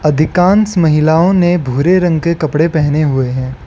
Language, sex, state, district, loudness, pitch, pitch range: Hindi, male, Arunachal Pradesh, Lower Dibang Valley, -12 LUFS, 155 Hz, 150-175 Hz